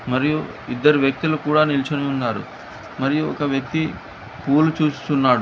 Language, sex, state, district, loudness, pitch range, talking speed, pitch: Telugu, male, Telangana, Hyderabad, -20 LUFS, 135-155 Hz, 120 wpm, 145 Hz